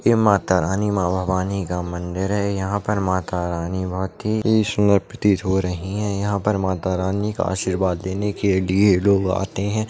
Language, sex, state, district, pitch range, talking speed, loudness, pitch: Hindi, male, Maharashtra, Solapur, 95-105 Hz, 190 wpm, -21 LUFS, 95 Hz